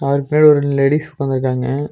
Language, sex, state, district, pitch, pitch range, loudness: Tamil, male, Tamil Nadu, Nilgiris, 140 Hz, 135-150 Hz, -15 LUFS